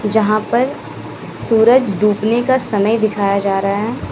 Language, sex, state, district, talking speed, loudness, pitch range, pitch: Hindi, female, Uttar Pradesh, Lalitpur, 145 wpm, -15 LUFS, 205-230 Hz, 215 Hz